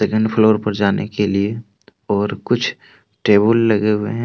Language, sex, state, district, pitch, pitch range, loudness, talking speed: Hindi, male, Jharkhand, Deoghar, 105 Hz, 105-110 Hz, -17 LUFS, 170 wpm